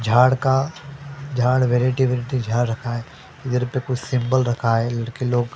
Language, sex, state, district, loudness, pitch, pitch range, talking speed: Hindi, male, Delhi, New Delhi, -21 LUFS, 125 Hz, 120-130 Hz, 185 wpm